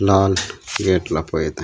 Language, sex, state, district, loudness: Chhattisgarhi, male, Chhattisgarh, Raigarh, -20 LUFS